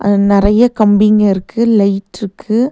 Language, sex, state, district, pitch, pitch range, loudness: Tamil, female, Tamil Nadu, Nilgiris, 205 Hz, 200-225 Hz, -12 LUFS